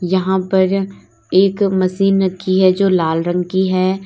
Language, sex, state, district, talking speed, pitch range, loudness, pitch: Hindi, female, Uttar Pradesh, Lalitpur, 160 wpm, 185-195 Hz, -15 LUFS, 190 Hz